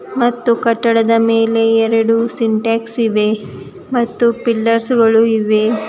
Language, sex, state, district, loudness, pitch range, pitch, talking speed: Kannada, female, Karnataka, Bidar, -14 LUFS, 225-235 Hz, 230 Hz, 100 wpm